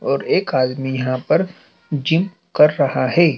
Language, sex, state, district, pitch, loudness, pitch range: Hindi, male, Madhya Pradesh, Dhar, 150 Hz, -18 LUFS, 130-170 Hz